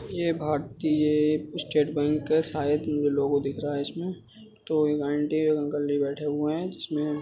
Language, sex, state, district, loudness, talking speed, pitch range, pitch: Hindi, male, Uttar Pradesh, Budaun, -27 LUFS, 185 wpm, 145-155 Hz, 150 Hz